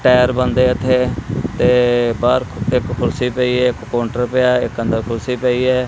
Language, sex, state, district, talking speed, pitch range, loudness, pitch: Punjabi, male, Punjab, Kapurthala, 195 wpm, 120-125 Hz, -16 LUFS, 125 Hz